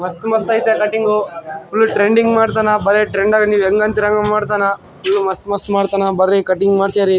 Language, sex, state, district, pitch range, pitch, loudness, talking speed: Kannada, male, Karnataka, Raichur, 195-215 Hz, 205 Hz, -15 LUFS, 175 wpm